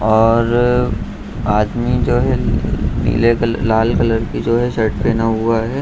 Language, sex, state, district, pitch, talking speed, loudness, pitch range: Hindi, male, Bihar, Jahanabad, 115 Hz, 155 wpm, -16 LUFS, 110-115 Hz